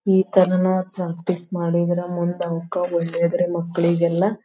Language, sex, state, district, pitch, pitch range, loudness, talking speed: Kannada, female, Karnataka, Belgaum, 175 Hz, 170-185 Hz, -21 LUFS, 110 wpm